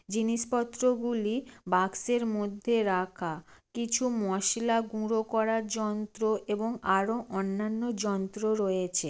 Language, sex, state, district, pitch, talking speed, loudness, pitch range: Bengali, female, West Bengal, Jalpaiguri, 215 Hz, 100 wpm, -30 LUFS, 195-230 Hz